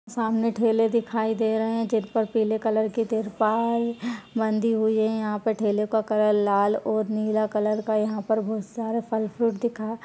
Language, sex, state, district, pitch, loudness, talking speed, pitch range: Hindi, female, Chhattisgarh, Bilaspur, 220 Hz, -25 LUFS, 195 wpm, 215-225 Hz